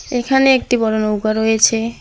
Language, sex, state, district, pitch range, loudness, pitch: Bengali, female, West Bengal, Alipurduar, 220-250 Hz, -15 LUFS, 225 Hz